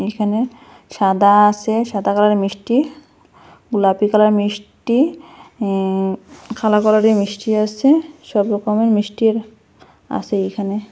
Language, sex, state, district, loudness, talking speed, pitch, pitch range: Bengali, female, Assam, Hailakandi, -17 LUFS, 105 wpm, 210 Hz, 205-225 Hz